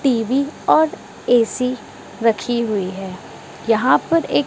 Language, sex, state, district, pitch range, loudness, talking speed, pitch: Hindi, female, Maharashtra, Mumbai Suburban, 215-265 Hz, -18 LUFS, 120 wpm, 240 Hz